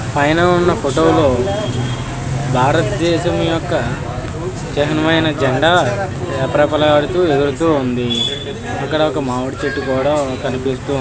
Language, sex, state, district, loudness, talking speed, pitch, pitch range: Telugu, male, Andhra Pradesh, Visakhapatnam, -16 LUFS, 85 wpm, 140 Hz, 125-155 Hz